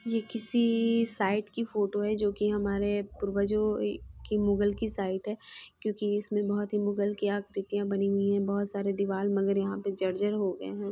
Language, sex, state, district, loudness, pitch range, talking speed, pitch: Hindi, female, Bihar, Muzaffarpur, -30 LUFS, 200-210 Hz, 190 wpm, 205 Hz